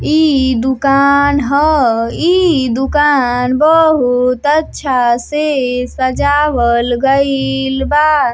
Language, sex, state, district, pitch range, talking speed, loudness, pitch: Bhojpuri, female, Uttar Pradesh, Deoria, 250-295 Hz, 85 wpm, -12 LUFS, 270 Hz